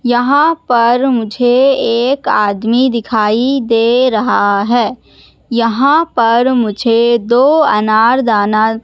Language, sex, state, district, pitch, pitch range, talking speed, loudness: Hindi, female, Madhya Pradesh, Katni, 235 Hz, 225-255 Hz, 100 wpm, -12 LUFS